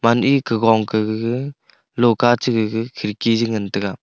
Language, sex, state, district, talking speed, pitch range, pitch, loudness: Wancho, male, Arunachal Pradesh, Longding, 180 wpm, 110-120 Hz, 115 Hz, -18 LUFS